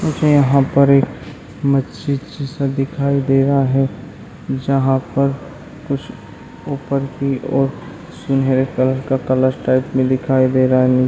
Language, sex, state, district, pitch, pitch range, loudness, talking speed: Hindi, male, Chhattisgarh, Raigarh, 135 Hz, 130-140 Hz, -17 LUFS, 135 wpm